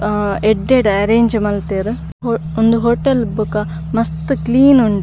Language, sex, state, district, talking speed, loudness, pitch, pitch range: Tulu, female, Karnataka, Dakshina Kannada, 120 wpm, -15 LUFS, 215 Hz, 200-230 Hz